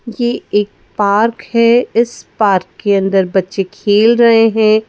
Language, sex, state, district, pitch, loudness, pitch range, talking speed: Hindi, female, Madhya Pradesh, Bhopal, 215 Hz, -13 LUFS, 200-230 Hz, 145 wpm